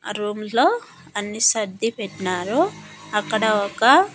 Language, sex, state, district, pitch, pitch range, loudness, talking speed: Telugu, female, Andhra Pradesh, Annamaya, 215 Hz, 205-230 Hz, -21 LUFS, 100 wpm